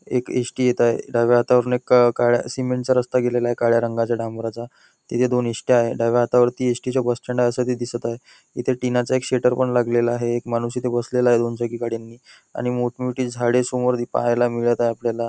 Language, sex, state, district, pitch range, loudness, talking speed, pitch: Marathi, male, Maharashtra, Nagpur, 120-125 Hz, -21 LUFS, 215 wpm, 120 Hz